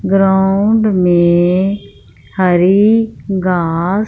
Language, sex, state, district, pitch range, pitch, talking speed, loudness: Hindi, female, Punjab, Fazilka, 175-200 Hz, 190 Hz, 60 wpm, -12 LUFS